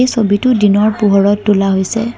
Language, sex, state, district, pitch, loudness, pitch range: Assamese, female, Assam, Kamrup Metropolitan, 205 Hz, -12 LUFS, 200-225 Hz